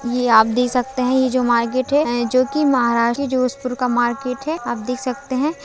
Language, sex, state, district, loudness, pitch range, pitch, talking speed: Hindi, female, Maharashtra, Chandrapur, -18 LUFS, 240-260 Hz, 255 Hz, 210 wpm